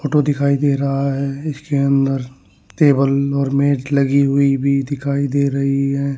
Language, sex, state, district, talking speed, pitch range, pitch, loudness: Hindi, male, Haryana, Rohtak, 165 wpm, 135-140 Hz, 140 Hz, -17 LUFS